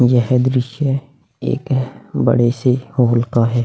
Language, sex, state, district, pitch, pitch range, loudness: Hindi, male, Chhattisgarh, Sukma, 125 Hz, 120-135 Hz, -17 LUFS